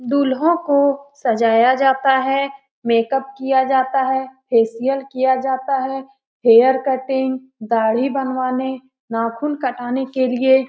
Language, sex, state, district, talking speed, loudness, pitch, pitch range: Hindi, female, Bihar, Lakhisarai, 125 wpm, -18 LUFS, 265 Hz, 255-270 Hz